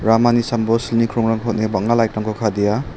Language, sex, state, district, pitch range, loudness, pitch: Garo, male, Meghalaya, South Garo Hills, 110-115 Hz, -18 LUFS, 115 Hz